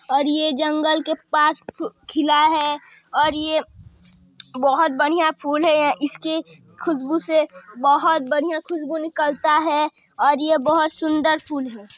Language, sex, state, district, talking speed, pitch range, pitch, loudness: Hindi, male, Chhattisgarh, Sarguja, 135 wpm, 295-315 Hz, 310 Hz, -20 LUFS